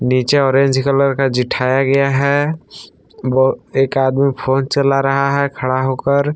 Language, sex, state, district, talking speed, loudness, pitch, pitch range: Hindi, male, Jharkhand, Palamu, 140 wpm, -15 LUFS, 135 Hz, 130-140 Hz